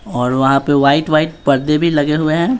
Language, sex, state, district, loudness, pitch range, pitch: Hindi, male, Bihar, Patna, -14 LUFS, 140-155 Hz, 150 Hz